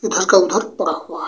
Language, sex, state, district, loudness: Bhojpuri, male, Uttar Pradesh, Gorakhpur, -17 LUFS